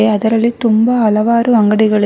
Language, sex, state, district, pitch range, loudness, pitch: Kannada, female, Karnataka, Bangalore, 215-235 Hz, -12 LUFS, 220 Hz